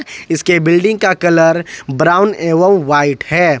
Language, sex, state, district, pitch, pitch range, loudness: Hindi, male, Jharkhand, Ranchi, 170 Hz, 165-185 Hz, -12 LUFS